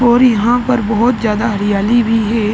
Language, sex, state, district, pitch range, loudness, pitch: Hindi, male, Uttar Pradesh, Ghazipur, 215-240 Hz, -13 LUFS, 225 Hz